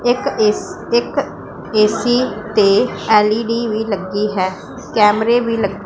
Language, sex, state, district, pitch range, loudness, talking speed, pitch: Punjabi, female, Punjab, Pathankot, 210-230 Hz, -16 LUFS, 115 wpm, 215 Hz